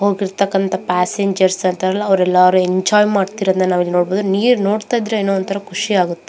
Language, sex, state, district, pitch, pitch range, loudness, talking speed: Kannada, female, Karnataka, Belgaum, 195 Hz, 185-200 Hz, -16 LUFS, 145 wpm